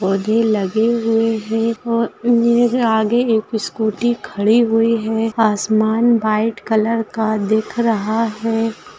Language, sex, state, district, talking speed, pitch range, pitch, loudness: Hindi, female, Uttarakhand, Uttarkashi, 125 wpm, 215-230 Hz, 225 Hz, -17 LUFS